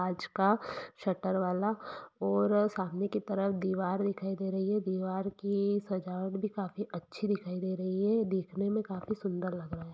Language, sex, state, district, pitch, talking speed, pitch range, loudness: Hindi, female, Jharkhand, Jamtara, 195 Hz, 180 wpm, 185-205 Hz, -33 LUFS